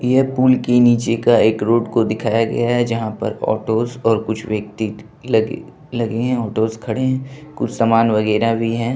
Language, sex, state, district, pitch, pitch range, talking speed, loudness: Hindi, male, Bihar, Begusarai, 115 Hz, 110-120 Hz, 185 wpm, -18 LUFS